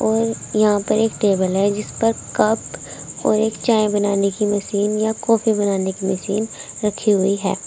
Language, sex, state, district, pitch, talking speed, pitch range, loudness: Hindi, female, Uttar Pradesh, Saharanpur, 210 Hz, 180 wpm, 200-220 Hz, -19 LUFS